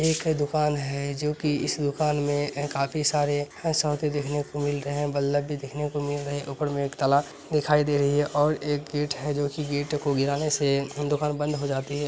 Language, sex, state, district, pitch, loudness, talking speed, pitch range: Maithili, male, Bihar, Araria, 145 Hz, -26 LUFS, 215 wpm, 145-150 Hz